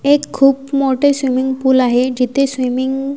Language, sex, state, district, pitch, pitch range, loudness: Marathi, female, Maharashtra, Washim, 265 Hz, 255-275 Hz, -15 LUFS